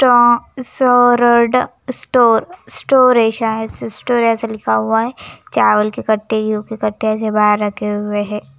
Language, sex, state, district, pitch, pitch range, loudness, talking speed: Hindi, female, Himachal Pradesh, Shimla, 225 Hz, 210-240 Hz, -15 LUFS, 160 wpm